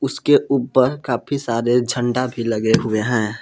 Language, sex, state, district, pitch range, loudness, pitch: Hindi, male, Jharkhand, Palamu, 115-135 Hz, -19 LUFS, 125 Hz